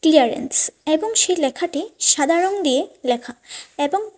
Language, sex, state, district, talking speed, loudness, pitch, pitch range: Bengali, female, Tripura, West Tripura, 130 wpm, -19 LUFS, 315 Hz, 280-380 Hz